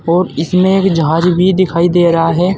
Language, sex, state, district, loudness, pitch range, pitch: Hindi, male, Uttar Pradesh, Saharanpur, -12 LUFS, 165-185 Hz, 175 Hz